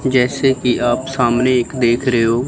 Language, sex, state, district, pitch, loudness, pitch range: Hindi, female, Chandigarh, Chandigarh, 125 Hz, -16 LUFS, 120-130 Hz